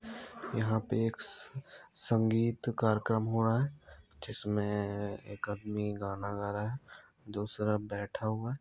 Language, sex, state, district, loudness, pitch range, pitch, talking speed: Hindi, male, Rajasthan, Nagaur, -34 LUFS, 105-115 Hz, 110 Hz, 130 wpm